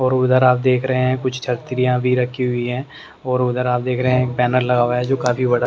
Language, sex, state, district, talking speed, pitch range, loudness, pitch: Hindi, male, Haryana, Rohtak, 265 wpm, 125-130 Hz, -18 LUFS, 125 Hz